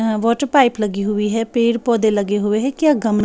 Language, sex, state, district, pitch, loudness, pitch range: Hindi, female, Bihar, Patna, 225 Hz, -17 LUFS, 210-240 Hz